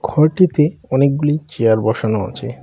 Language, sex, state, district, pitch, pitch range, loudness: Bengali, male, West Bengal, Cooch Behar, 140 Hz, 110-155 Hz, -16 LUFS